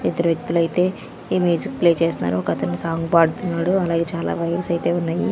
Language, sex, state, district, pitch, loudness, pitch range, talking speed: Telugu, female, Andhra Pradesh, Manyam, 170 Hz, -20 LUFS, 165-175 Hz, 170 wpm